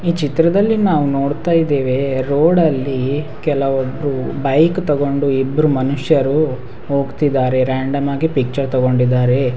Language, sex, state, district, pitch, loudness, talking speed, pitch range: Kannada, male, Karnataka, Raichur, 140 Hz, -16 LUFS, 100 wpm, 130-155 Hz